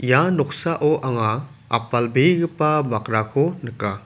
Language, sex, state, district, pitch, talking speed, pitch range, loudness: Garo, male, Meghalaya, South Garo Hills, 130 Hz, 90 wpm, 115-150 Hz, -21 LUFS